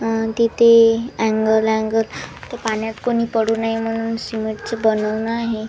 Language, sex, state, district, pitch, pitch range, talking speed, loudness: Marathi, female, Maharashtra, Washim, 225 Hz, 220-230 Hz, 150 wpm, -18 LUFS